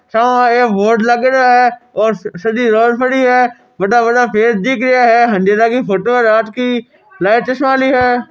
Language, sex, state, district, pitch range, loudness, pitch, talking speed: Marwari, male, Rajasthan, Nagaur, 225-250 Hz, -12 LUFS, 240 Hz, 190 wpm